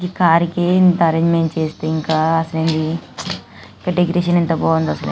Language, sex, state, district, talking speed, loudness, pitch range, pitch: Telugu, female, Andhra Pradesh, Anantapur, 140 wpm, -17 LUFS, 160-175 Hz, 165 Hz